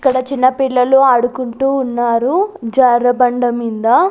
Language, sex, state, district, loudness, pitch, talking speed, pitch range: Telugu, female, Andhra Pradesh, Sri Satya Sai, -14 LUFS, 255 Hz, 115 wpm, 240-265 Hz